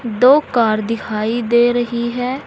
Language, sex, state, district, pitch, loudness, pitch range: Hindi, female, Uttar Pradesh, Saharanpur, 235 Hz, -16 LUFS, 230-245 Hz